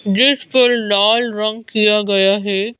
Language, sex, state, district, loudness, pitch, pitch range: Hindi, female, Madhya Pradesh, Bhopal, -14 LUFS, 215 Hz, 205-240 Hz